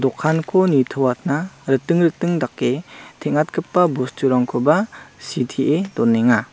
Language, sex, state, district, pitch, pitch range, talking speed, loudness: Garo, male, Meghalaya, South Garo Hills, 145 Hz, 130-170 Hz, 85 wpm, -19 LUFS